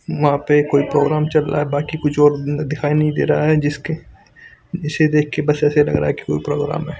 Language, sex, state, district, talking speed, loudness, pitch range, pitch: Hindi, male, Chandigarh, Chandigarh, 240 wpm, -17 LUFS, 145-155 Hz, 150 Hz